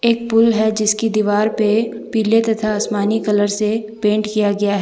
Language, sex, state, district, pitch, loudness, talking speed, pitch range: Hindi, female, Jharkhand, Deoghar, 215 Hz, -17 LUFS, 185 wpm, 210-225 Hz